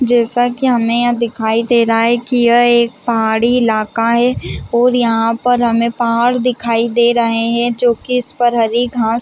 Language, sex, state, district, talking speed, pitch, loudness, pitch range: Hindi, female, Chhattisgarh, Balrampur, 190 wpm, 235 Hz, -14 LUFS, 230-245 Hz